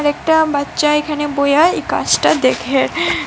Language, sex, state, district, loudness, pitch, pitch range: Bengali, female, Assam, Hailakandi, -15 LUFS, 300 Hz, 285-320 Hz